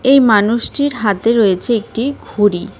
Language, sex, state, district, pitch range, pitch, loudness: Bengali, female, West Bengal, Cooch Behar, 205-255 Hz, 230 Hz, -14 LUFS